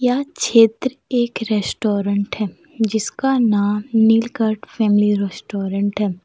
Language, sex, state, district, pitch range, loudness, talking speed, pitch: Hindi, female, Jharkhand, Deoghar, 205-235 Hz, -18 LUFS, 105 wpm, 220 Hz